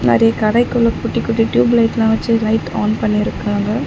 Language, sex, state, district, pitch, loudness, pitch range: Tamil, female, Tamil Nadu, Chennai, 225 Hz, -15 LUFS, 215-230 Hz